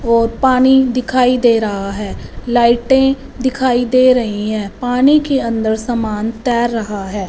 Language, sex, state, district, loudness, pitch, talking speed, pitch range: Hindi, female, Punjab, Fazilka, -14 LUFS, 240 Hz, 150 wpm, 220-255 Hz